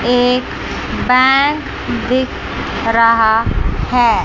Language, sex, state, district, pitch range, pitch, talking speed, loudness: Hindi, female, Chandigarh, Chandigarh, 230-255 Hz, 250 Hz, 70 wpm, -14 LUFS